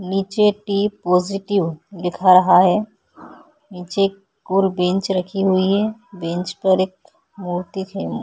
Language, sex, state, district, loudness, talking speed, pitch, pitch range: Hindi, female, Chhattisgarh, Korba, -19 LUFS, 115 wpm, 190 Hz, 180-200 Hz